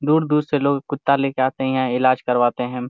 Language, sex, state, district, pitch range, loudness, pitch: Hindi, male, Jharkhand, Jamtara, 125-140 Hz, -20 LUFS, 130 Hz